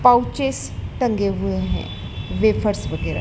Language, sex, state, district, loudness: Hindi, female, Madhya Pradesh, Dhar, -22 LUFS